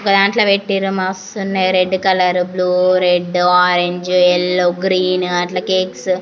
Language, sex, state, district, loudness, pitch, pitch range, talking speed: Telugu, female, Andhra Pradesh, Anantapur, -15 LUFS, 185 Hz, 180-190 Hz, 145 wpm